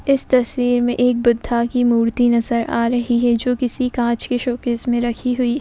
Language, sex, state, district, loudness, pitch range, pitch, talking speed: Hindi, female, Uttar Pradesh, Etah, -18 LUFS, 235-250 Hz, 245 Hz, 215 wpm